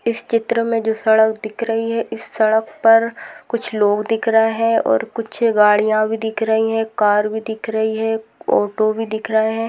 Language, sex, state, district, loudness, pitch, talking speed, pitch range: Hindi, female, Rajasthan, Churu, -18 LUFS, 225 Hz, 205 wpm, 220-230 Hz